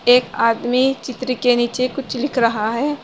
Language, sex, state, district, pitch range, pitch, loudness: Hindi, female, Uttar Pradesh, Saharanpur, 240-255 Hz, 250 Hz, -18 LUFS